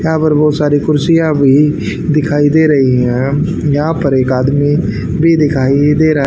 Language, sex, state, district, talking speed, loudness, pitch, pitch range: Hindi, male, Haryana, Rohtak, 170 wpm, -11 LUFS, 150 Hz, 140-155 Hz